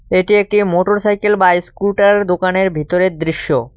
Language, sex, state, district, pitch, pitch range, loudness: Bengali, male, West Bengal, Cooch Behar, 185 Hz, 180-205 Hz, -14 LUFS